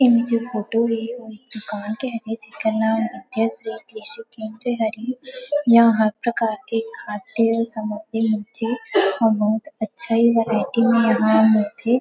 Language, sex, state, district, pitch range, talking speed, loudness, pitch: Chhattisgarhi, female, Chhattisgarh, Rajnandgaon, 220-235 Hz, 130 wpm, -21 LUFS, 225 Hz